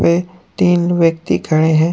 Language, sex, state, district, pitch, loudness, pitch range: Hindi, male, Jharkhand, Deoghar, 170 Hz, -15 LUFS, 160-175 Hz